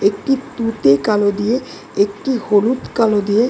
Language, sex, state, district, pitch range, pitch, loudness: Bengali, female, West Bengal, Dakshin Dinajpur, 205-240 Hz, 215 Hz, -17 LUFS